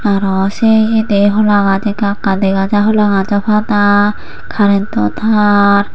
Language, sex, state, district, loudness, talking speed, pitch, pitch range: Chakma, female, Tripura, Unakoti, -12 LUFS, 120 wpm, 205 Hz, 200-210 Hz